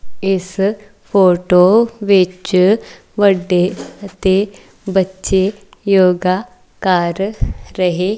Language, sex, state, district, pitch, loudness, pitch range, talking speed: Punjabi, female, Punjab, Kapurthala, 190 Hz, -15 LUFS, 185-200 Hz, 65 wpm